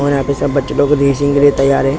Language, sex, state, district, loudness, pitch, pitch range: Hindi, male, Maharashtra, Mumbai Suburban, -13 LUFS, 140 Hz, 140-145 Hz